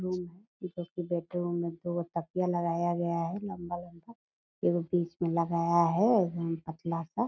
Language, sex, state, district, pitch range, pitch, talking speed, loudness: Hindi, female, Bihar, Purnia, 170-180 Hz, 175 Hz, 130 wpm, -31 LUFS